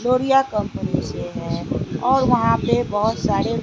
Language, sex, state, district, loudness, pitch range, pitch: Hindi, female, Bihar, West Champaran, -20 LUFS, 210-260 Hz, 245 Hz